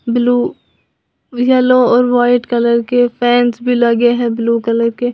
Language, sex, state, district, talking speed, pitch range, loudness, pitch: Hindi, female, Uttar Pradesh, Lalitpur, 150 wpm, 235-245 Hz, -13 LUFS, 245 Hz